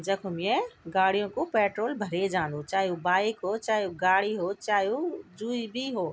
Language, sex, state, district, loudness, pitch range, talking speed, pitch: Garhwali, female, Uttarakhand, Tehri Garhwal, -28 LUFS, 185-220 Hz, 195 wpm, 200 Hz